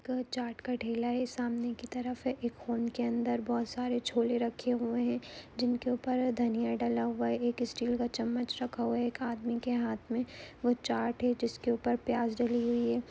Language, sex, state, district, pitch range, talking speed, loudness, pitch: Hindi, female, Uttar Pradesh, Ghazipur, 235-245 Hz, 205 wpm, -33 LUFS, 240 Hz